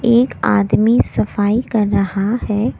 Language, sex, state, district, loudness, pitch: Hindi, female, Delhi, New Delhi, -16 LUFS, 205 Hz